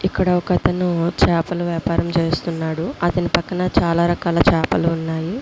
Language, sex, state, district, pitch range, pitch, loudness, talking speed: Telugu, female, Andhra Pradesh, Visakhapatnam, 165-180 Hz, 170 Hz, -19 LUFS, 210 wpm